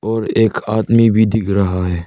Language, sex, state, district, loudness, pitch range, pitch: Hindi, male, Arunachal Pradesh, Lower Dibang Valley, -15 LUFS, 100-110 Hz, 110 Hz